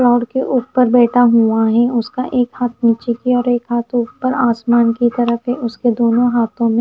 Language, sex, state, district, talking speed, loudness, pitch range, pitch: Hindi, female, Himachal Pradesh, Shimla, 200 wpm, -15 LUFS, 235-245 Hz, 240 Hz